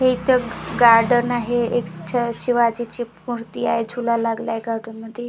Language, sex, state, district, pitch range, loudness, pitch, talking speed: Marathi, female, Maharashtra, Gondia, 230-240 Hz, -20 LUFS, 235 Hz, 170 wpm